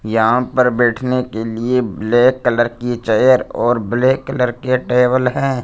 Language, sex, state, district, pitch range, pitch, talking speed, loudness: Hindi, male, Punjab, Fazilka, 120-125 Hz, 125 Hz, 160 wpm, -16 LUFS